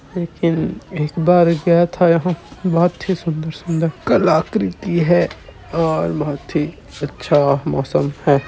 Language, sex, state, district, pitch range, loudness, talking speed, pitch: Chhattisgarhi, male, Chhattisgarh, Sarguja, 145-175 Hz, -18 LUFS, 115 wpm, 165 Hz